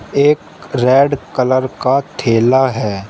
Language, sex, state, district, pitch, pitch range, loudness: Hindi, male, Uttar Pradesh, Shamli, 130 Hz, 120-140 Hz, -14 LUFS